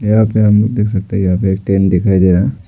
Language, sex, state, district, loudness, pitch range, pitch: Hindi, male, Arunachal Pradesh, Lower Dibang Valley, -13 LUFS, 95-105 Hz, 100 Hz